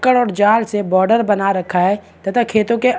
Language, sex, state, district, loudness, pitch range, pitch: Hindi, male, Chhattisgarh, Bastar, -16 LUFS, 195-235 Hz, 210 Hz